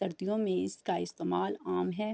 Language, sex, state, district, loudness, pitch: Urdu, female, Andhra Pradesh, Anantapur, -33 LUFS, 185 Hz